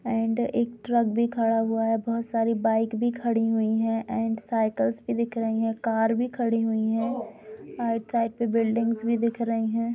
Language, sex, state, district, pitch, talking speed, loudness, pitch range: Hindi, female, Bihar, Gopalganj, 230 Hz, 200 wpm, -26 LUFS, 225-235 Hz